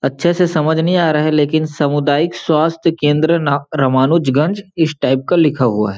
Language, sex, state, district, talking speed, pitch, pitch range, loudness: Hindi, male, Chhattisgarh, Balrampur, 190 wpm, 155 Hz, 145-165 Hz, -15 LUFS